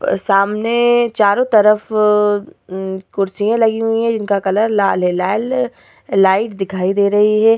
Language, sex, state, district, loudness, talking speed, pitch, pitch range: Hindi, female, Uttar Pradesh, Hamirpur, -15 LUFS, 150 wpm, 210 Hz, 195-225 Hz